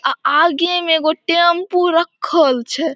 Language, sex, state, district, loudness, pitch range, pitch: Maithili, female, Bihar, Samastipur, -15 LUFS, 315-350 Hz, 335 Hz